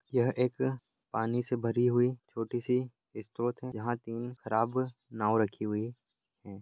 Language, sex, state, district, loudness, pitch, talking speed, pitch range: Angika, male, Bihar, Madhepura, -32 LUFS, 120 Hz, 155 wpm, 110-125 Hz